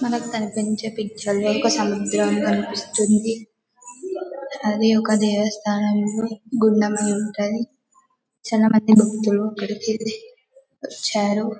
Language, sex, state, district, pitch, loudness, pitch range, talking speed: Telugu, female, Telangana, Karimnagar, 215 Hz, -21 LUFS, 210-230 Hz, 100 wpm